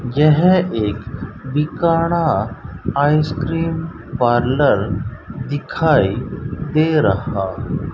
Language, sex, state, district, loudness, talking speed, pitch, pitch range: Hindi, male, Rajasthan, Bikaner, -18 LUFS, 70 wpm, 145 Hz, 120-160 Hz